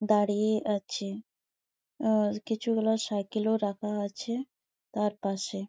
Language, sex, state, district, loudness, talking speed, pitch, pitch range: Bengali, female, West Bengal, Malda, -30 LUFS, 115 wpm, 215 Hz, 205-220 Hz